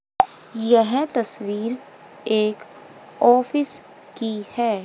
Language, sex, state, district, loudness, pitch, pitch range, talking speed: Hindi, female, Haryana, Jhajjar, -22 LUFS, 230 Hz, 215-250 Hz, 75 wpm